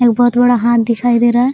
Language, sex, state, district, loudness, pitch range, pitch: Hindi, female, Bihar, Araria, -12 LUFS, 235-245 Hz, 240 Hz